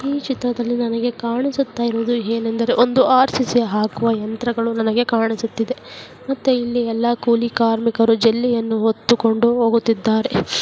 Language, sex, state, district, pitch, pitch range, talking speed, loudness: Kannada, female, Karnataka, Mysore, 235 Hz, 225-240 Hz, 120 wpm, -18 LUFS